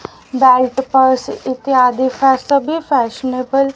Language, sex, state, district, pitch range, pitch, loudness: Hindi, female, Haryana, Rohtak, 255-275 Hz, 260 Hz, -14 LUFS